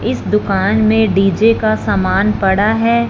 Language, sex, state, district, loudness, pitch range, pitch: Hindi, female, Punjab, Fazilka, -13 LUFS, 195-220 Hz, 210 Hz